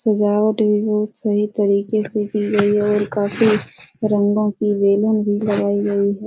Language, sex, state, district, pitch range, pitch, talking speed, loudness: Hindi, male, Bihar, Supaul, 205-215 Hz, 210 Hz, 170 wpm, -18 LUFS